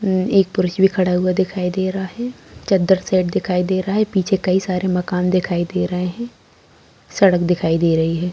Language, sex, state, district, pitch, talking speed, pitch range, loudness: Hindi, female, Bihar, Darbhanga, 185 Hz, 200 wpm, 180-190 Hz, -18 LUFS